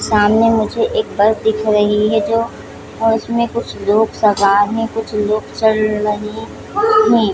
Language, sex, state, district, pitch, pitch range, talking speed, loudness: Hindi, female, Chhattisgarh, Bilaspur, 220 Hz, 210-225 Hz, 145 wpm, -15 LUFS